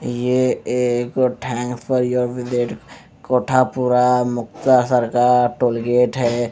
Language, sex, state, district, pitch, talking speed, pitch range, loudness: Hindi, male, Punjab, Fazilka, 125 Hz, 120 wpm, 120-125 Hz, -18 LUFS